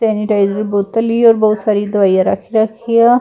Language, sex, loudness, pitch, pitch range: Punjabi, female, -13 LUFS, 215 Hz, 205-230 Hz